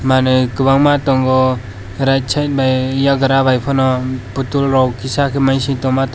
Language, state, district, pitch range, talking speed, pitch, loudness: Kokborok, Tripura, West Tripura, 130-135 Hz, 145 wpm, 130 Hz, -15 LUFS